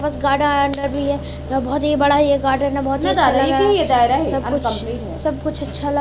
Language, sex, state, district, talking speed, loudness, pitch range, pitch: Hindi, female, Madhya Pradesh, Katni, 130 wpm, -17 LUFS, 275-290 Hz, 285 Hz